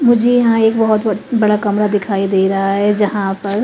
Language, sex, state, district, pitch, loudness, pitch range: Hindi, female, Bihar, Katihar, 210 Hz, -14 LUFS, 200-225 Hz